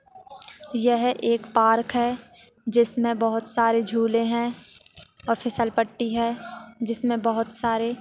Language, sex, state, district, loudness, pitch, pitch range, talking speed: Hindi, female, Chhattisgarh, Jashpur, -21 LUFS, 235 Hz, 230-240 Hz, 105 wpm